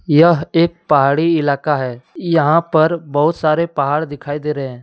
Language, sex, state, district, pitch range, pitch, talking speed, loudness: Hindi, male, Jharkhand, Deoghar, 145-165 Hz, 150 Hz, 175 wpm, -16 LUFS